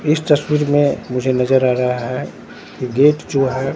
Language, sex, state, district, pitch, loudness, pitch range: Hindi, male, Bihar, Katihar, 135 Hz, -16 LUFS, 125-145 Hz